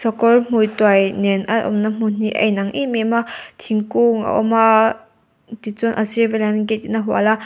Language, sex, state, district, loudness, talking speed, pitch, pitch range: Mizo, female, Mizoram, Aizawl, -17 LUFS, 200 wpm, 220 Hz, 215-225 Hz